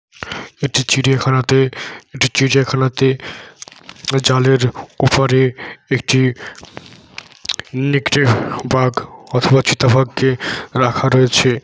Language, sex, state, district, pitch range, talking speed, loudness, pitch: Bengali, male, West Bengal, Jalpaiguri, 130-135 Hz, 80 wpm, -15 LUFS, 130 Hz